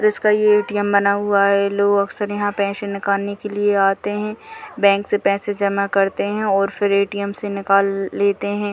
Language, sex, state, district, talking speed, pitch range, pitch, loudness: Hindi, female, Bihar, Muzaffarpur, 200 wpm, 200-205 Hz, 200 Hz, -18 LUFS